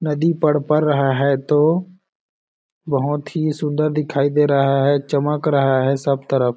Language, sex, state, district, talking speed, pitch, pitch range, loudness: Hindi, male, Chhattisgarh, Balrampur, 155 wpm, 145 Hz, 140-150 Hz, -18 LUFS